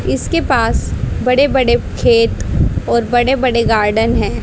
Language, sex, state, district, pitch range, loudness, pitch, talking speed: Hindi, female, Haryana, Charkhi Dadri, 235-265 Hz, -14 LUFS, 245 Hz, 135 wpm